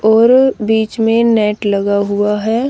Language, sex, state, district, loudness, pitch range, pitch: Hindi, female, Haryana, Rohtak, -13 LUFS, 210-230 Hz, 220 Hz